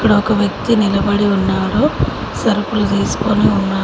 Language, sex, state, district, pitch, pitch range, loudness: Telugu, female, Telangana, Mahabubabad, 205 Hz, 200-215 Hz, -15 LUFS